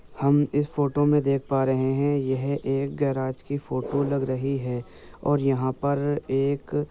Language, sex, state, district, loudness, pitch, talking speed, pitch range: Hindi, male, Uttar Pradesh, Muzaffarnagar, -25 LUFS, 140 Hz, 180 wpm, 130-145 Hz